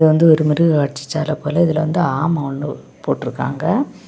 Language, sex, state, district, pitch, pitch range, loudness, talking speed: Tamil, female, Tamil Nadu, Kanyakumari, 155 Hz, 145-165 Hz, -18 LUFS, 160 wpm